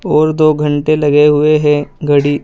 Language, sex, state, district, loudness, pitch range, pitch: Hindi, male, Uttar Pradesh, Saharanpur, -12 LUFS, 145-155 Hz, 150 Hz